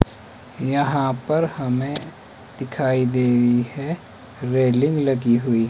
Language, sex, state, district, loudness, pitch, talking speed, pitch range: Hindi, male, Himachal Pradesh, Shimla, -21 LUFS, 130 Hz, 105 wpm, 120-140 Hz